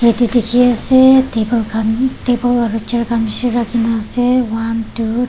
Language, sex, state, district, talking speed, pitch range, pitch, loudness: Nagamese, female, Nagaland, Kohima, 180 wpm, 225-245 Hz, 235 Hz, -14 LUFS